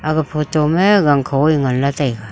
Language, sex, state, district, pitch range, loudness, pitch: Wancho, female, Arunachal Pradesh, Longding, 140-155 Hz, -15 LUFS, 145 Hz